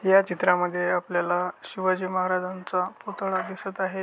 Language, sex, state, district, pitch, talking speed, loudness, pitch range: Marathi, male, Maharashtra, Aurangabad, 185 Hz, 120 wpm, -26 LUFS, 180-190 Hz